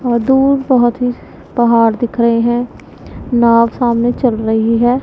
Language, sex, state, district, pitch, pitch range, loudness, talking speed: Hindi, female, Punjab, Pathankot, 240 Hz, 230-245 Hz, -13 LUFS, 155 wpm